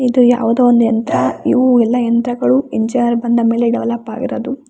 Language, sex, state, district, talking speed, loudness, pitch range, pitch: Kannada, female, Karnataka, Raichur, 140 wpm, -14 LUFS, 235-250 Hz, 235 Hz